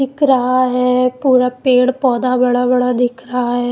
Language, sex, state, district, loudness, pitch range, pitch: Hindi, female, Chandigarh, Chandigarh, -14 LUFS, 250-255 Hz, 250 Hz